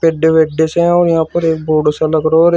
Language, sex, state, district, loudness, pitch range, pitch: Hindi, male, Uttar Pradesh, Shamli, -13 LUFS, 155-170 Hz, 160 Hz